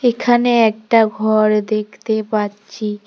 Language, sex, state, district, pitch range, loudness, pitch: Bengali, female, West Bengal, Cooch Behar, 210-230 Hz, -16 LUFS, 215 Hz